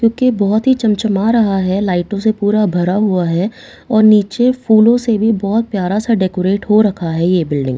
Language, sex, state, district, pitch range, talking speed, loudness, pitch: Hindi, female, Bihar, Katihar, 185-225 Hz, 215 wpm, -14 LUFS, 210 Hz